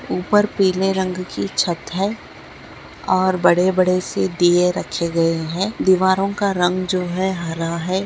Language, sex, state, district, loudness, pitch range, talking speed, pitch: Hindi, female, Bihar, Bhagalpur, -19 LUFS, 175-190 Hz, 155 wpm, 185 Hz